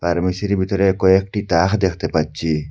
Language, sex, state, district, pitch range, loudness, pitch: Bengali, male, Assam, Hailakandi, 85-100 Hz, -18 LUFS, 95 Hz